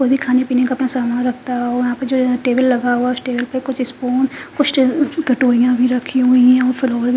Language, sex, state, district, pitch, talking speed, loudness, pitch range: Hindi, female, Punjab, Fazilka, 255 Hz, 225 wpm, -16 LUFS, 250-260 Hz